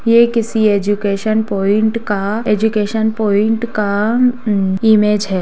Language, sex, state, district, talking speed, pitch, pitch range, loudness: Hindi, female, Bihar, Sitamarhi, 120 wpm, 215 Hz, 205-220 Hz, -15 LUFS